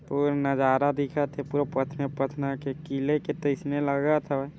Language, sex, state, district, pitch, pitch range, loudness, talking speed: Chhattisgarhi, male, Chhattisgarh, Bilaspur, 140 Hz, 135-145 Hz, -27 LUFS, 155 wpm